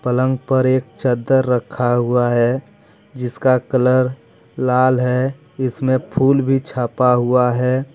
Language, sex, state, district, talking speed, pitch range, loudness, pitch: Hindi, male, Jharkhand, Deoghar, 120 wpm, 125-130 Hz, -17 LUFS, 125 Hz